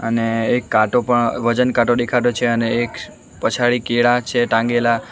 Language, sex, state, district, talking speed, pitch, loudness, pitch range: Gujarati, male, Gujarat, Valsad, 165 wpm, 120 Hz, -17 LUFS, 115-120 Hz